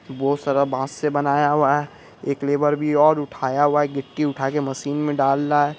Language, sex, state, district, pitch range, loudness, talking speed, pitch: Hindi, male, Bihar, Araria, 140-150 Hz, -21 LUFS, 215 wpm, 145 Hz